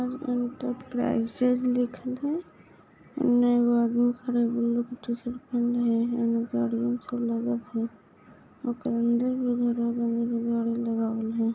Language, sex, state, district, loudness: Maithili, female, Bihar, Samastipur, -27 LUFS